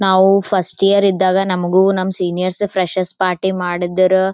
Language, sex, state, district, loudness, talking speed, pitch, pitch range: Kannada, female, Karnataka, Gulbarga, -14 LUFS, 140 wpm, 190 Hz, 185-195 Hz